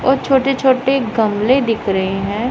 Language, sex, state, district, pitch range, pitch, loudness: Hindi, female, Punjab, Pathankot, 210-265 Hz, 250 Hz, -16 LUFS